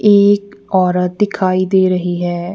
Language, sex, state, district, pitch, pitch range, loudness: Hindi, female, Punjab, Kapurthala, 185 Hz, 180-200 Hz, -14 LUFS